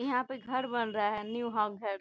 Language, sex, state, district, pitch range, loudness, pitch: Hindi, female, Bihar, Gopalganj, 210-250 Hz, -33 LUFS, 235 Hz